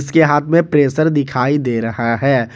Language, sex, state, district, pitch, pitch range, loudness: Hindi, male, Jharkhand, Garhwa, 140 Hz, 120-150 Hz, -15 LUFS